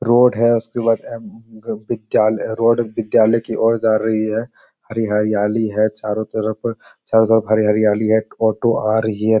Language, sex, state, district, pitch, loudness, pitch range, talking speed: Hindi, male, Bihar, Jamui, 110 Hz, -17 LUFS, 110-115 Hz, 185 wpm